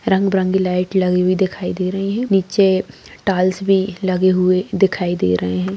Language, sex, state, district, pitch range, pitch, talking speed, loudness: Hindi, female, Bihar, Darbhanga, 180-195 Hz, 185 Hz, 175 wpm, -17 LUFS